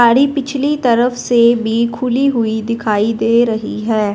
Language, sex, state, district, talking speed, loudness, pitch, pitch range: Hindi, female, Punjab, Fazilka, 160 wpm, -15 LUFS, 235 Hz, 225-250 Hz